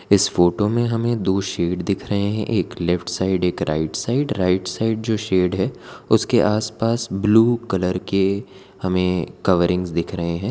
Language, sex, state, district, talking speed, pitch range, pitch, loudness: Hindi, male, Gujarat, Valsad, 170 wpm, 90-110 Hz, 95 Hz, -20 LUFS